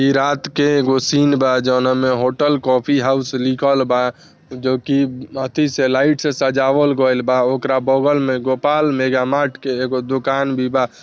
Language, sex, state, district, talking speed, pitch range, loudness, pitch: Bhojpuri, male, Bihar, Saran, 175 wpm, 130-140 Hz, -17 LUFS, 135 Hz